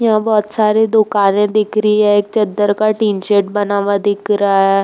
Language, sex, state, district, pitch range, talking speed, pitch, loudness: Hindi, female, Uttar Pradesh, Jalaun, 200-215 Hz, 210 wpm, 210 Hz, -14 LUFS